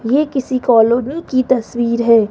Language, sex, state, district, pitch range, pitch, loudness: Hindi, female, Rajasthan, Jaipur, 235-260 Hz, 245 Hz, -15 LUFS